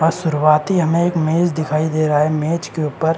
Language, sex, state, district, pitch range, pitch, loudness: Hindi, male, Uttar Pradesh, Varanasi, 155-170 Hz, 160 Hz, -17 LUFS